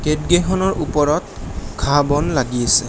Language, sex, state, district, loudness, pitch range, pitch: Assamese, male, Assam, Kamrup Metropolitan, -18 LUFS, 145-170 Hz, 150 Hz